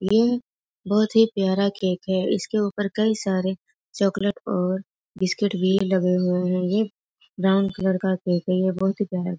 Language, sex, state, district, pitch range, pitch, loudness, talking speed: Hindi, female, Bihar, Muzaffarpur, 185-205 Hz, 190 Hz, -23 LUFS, 190 wpm